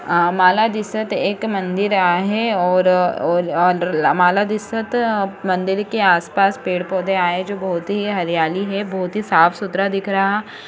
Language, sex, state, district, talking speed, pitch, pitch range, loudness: Marathi, female, Maharashtra, Sindhudurg, 135 wpm, 190 Hz, 180-205 Hz, -18 LUFS